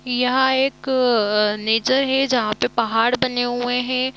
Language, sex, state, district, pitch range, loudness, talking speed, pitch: Hindi, female, Jharkhand, Jamtara, 230-260 Hz, -19 LUFS, 145 wpm, 250 Hz